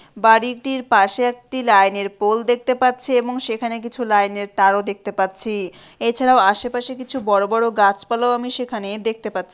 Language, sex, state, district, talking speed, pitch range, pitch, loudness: Bengali, female, West Bengal, Malda, 155 wpm, 200-245 Hz, 225 Hz, -18 LUFS